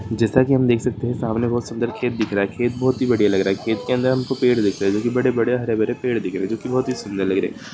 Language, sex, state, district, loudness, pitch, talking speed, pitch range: Hindi, male, Andhra Pradesh, Srikakulam, -20 LUFS, 120 Hz, 340 wpm, 110-125 Hz